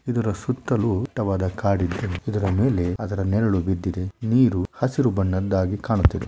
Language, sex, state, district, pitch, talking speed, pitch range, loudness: Kannada, male, Karnataka, Shimoga, 100 Hz, 125 wpm, 95-120 Hz, -23 LUFS